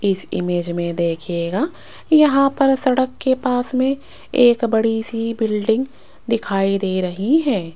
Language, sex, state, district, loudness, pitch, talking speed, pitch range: Hindi, female, Rajasthan, Jaipur, -19 LUFS, 230 Hz, 140 wpm, 190-260 Hz